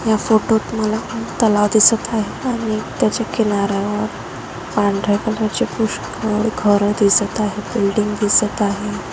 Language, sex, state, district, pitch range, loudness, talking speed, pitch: Marathi, female, Maharashtra, Dhule, 205-220 Hz, -17 LUFS, 125 wpm, 210 Hz